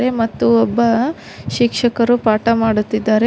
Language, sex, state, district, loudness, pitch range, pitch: Kannada, female, Karnataka, Koppal, -16 LUFS, 215-240 Hz, 230 Hz